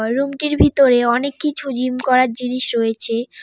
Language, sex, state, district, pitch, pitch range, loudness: Bengali, female, West Bengal, Cooch Behar, 255 Hz, 240-275 Hz, -17 LUFS